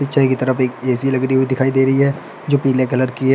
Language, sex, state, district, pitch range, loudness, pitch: Hindi, male, Uttar Pradesh, Shamli, 130-135 Hz, -17 LUFS, 130 Hz